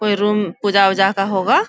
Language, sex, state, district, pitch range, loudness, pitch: Hindi, female, Bihar, Bhagalpur, 195-210 Hz, -16 LUFS, 200 Hz